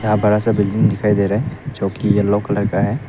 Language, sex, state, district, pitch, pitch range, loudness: Hindi, male, Arunachal Pradesh, Papum Pare, 105 Hz, 100-115 Hz, -17 LUFS